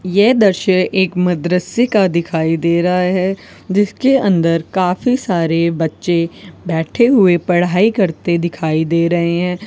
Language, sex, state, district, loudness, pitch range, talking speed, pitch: Hindi, female, Rajasthan, Bikaner, -15 LUFS, 170-195 Hz, 135 wpm, 180 Hz